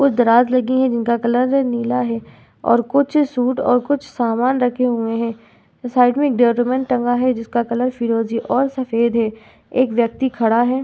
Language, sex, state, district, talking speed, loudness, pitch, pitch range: Hindi, female, Uttar Pradesh, Budaun, 185 wpm, -18 LUFS, 245 Hz, 235-255 Hz